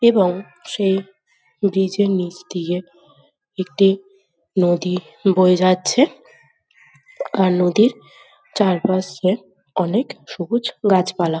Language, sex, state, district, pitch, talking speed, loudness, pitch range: Bengali, female, West Bengal, Jhargram, 190 Hz, 80 wpm, -19 LUFS, 180-200 Hz